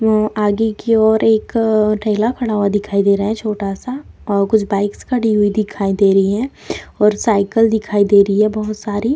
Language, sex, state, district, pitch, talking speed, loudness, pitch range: Hindi, female, Bihar, Vaishali, 215 Hz, 210 wpm, -16 LUFS, 205-220 Hz